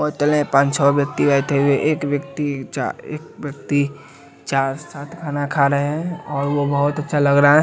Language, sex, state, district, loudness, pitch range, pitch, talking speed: Hindi, male, Bihar, West Champaran, -19 LUFS, 140-150 Hz, 145 Hz, 180 wpm